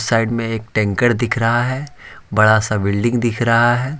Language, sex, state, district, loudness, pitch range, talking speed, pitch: Hindi, male, Jharkhand, Ranchi, -17 LUFS, 110-120 Hz, 195 wpm, 115 Hz